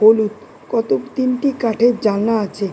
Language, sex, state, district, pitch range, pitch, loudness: Bengali, female, West Bengal, Dakshin Dinajpur, 210-240 Hz, 220 Hz, -18 LUFS